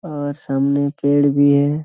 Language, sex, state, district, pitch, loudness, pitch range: Hindi, male, Bihar, Darbhanga, 145 Hz, -17 LUFS, 140-145 Hz